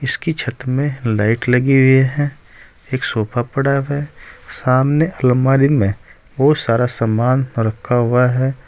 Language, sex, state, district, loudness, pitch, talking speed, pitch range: Hindi, male, Uttar Pradesh, Saharanpur, -16 LUFS, 130 Hz, 145 wpm, 120-140 Hz